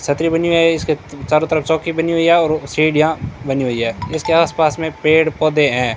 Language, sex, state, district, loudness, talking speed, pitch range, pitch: Hindi, male, Rajasthan, Bikaner, -16 LUFS, 230 wpm, 145-165 Hz, 155 Hz